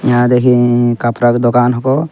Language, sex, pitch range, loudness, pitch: Angika, male, 120-125 Hz, -12 LUFS, 120 Hz